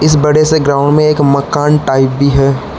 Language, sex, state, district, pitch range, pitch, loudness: Hindi, male, Arunachal Pradesh, Lower Dibang Valley, 140-150 Hz, 145 Hz, -10 LUFS